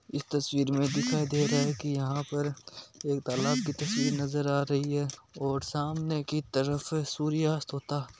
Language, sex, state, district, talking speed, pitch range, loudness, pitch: Marwari, male, Rajasthan, Nagaur, 175 wpm, 140-145 Hz, -30 LUFS, 145 Hz